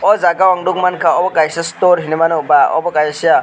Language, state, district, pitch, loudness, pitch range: Kokborok, Tripura, West Tripura, 170 Hz, -13 LUFS, 160-180 Hz